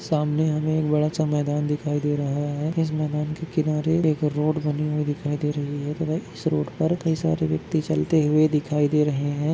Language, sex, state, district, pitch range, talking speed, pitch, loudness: Hindi, male, Chhattisgarh, Bastar, 145-155 Hz, 210 wpm, 150 Hz, -24 LUFS